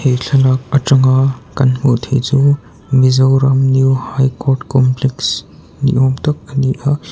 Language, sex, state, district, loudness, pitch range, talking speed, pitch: Mizo, male, Mizoram, Aizawl, -14 LUFS, 130-135 Hz, 145 wpm, 135 Hz